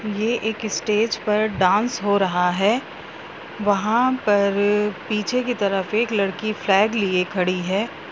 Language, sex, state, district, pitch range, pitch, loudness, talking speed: Hindi, female, Bihar, Darbhanga, 195-220 Hz, 210 Hz, -21 LUFS, 140 wpm